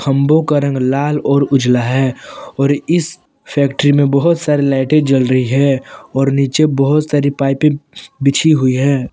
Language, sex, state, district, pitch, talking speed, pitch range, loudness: Hindi, male, Jharkhand, Palamu, 140 Hz, 165 wpm, 135-150 Hz, -14 LUFS